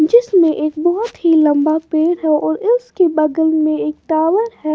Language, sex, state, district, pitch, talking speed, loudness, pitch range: Hindi, female, Maharashtra, Washim, 320 Hz, 175 wpm, -15 LUFS, 310-360 Hz